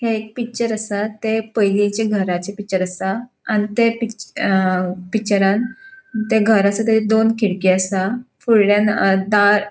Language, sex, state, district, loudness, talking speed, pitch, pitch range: Konkani, female, Goa, North and South Goa, -18 LUFS, 155 wpm, 215 Hz, 195-225 Hz